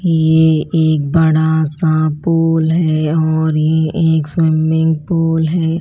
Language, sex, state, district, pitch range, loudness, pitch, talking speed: Hindi, female, Chhattisgarh, Raipur, 155-165 Hz, -14 LUFS, 160 Hz, 125 wpm